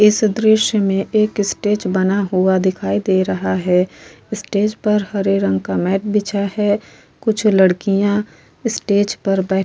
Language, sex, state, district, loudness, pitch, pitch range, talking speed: Hindi, female, Uttar Pradesh, Jyotiba Phule Nagar, -17 LUFS, 200 Hz, 185-210 Hz, 155 wpm